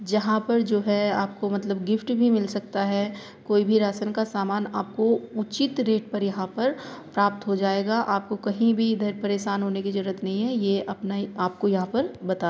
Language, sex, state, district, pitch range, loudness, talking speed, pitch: Hindi, female, Uttar Pradesh, Hamirpur, 200-220 Hz, -25 LUFS, 200 wpm, 205 Hz